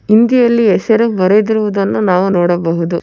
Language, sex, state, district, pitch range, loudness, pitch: Kannada, female, Karnataka, Bangalore, 180-220 Hz, -12 LUFS, 205 Hz